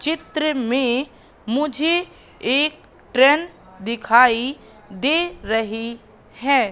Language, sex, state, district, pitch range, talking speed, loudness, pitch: Hindi, female, Madhya Pradesh, Katni, 230-305 Hz, 80 wpm, -20 LUFS, 260 Hz